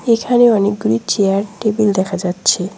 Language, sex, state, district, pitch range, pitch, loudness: Bengali, female, West Bengal, Cooch Behar, 190-220 Hz, 205 Hz, -15 LUFS